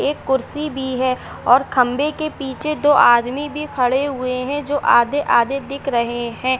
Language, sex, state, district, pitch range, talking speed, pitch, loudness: Hindi, female, Uttar Pradesh, Etah, 255-290 Hz, 180 wpm, 265 Hz, -18 LUFS